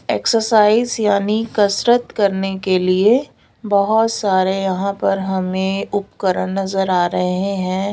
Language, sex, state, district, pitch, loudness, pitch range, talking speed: Hindi, female, Odisha, Sambalpur, 195 Hz, -17 LUFS, 190-215 Hz, 120 wpm